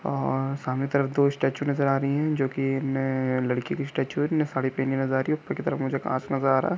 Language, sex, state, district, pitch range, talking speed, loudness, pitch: Hindi, male, Chhattisgarh, Bilaspur, 130-140 Hz, 265 wpm, -26 LUFS, 135 Hz